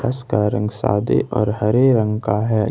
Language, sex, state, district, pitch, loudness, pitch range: Hindi, male, Jharkhand, Ranchi, 110 Hz, -18 LUFS, 105-120 Hz